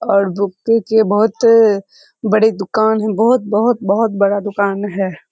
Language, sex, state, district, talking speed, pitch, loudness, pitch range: Hindi, female, Bihar, Kishanganj, 145 wpm, 215 Hz, -15 LUFS, 200-225 Hz